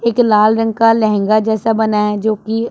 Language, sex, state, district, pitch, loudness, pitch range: Hindi, female, Punjab, Pathankot, 220 Hz, -14 LUFS, 215-225 Hz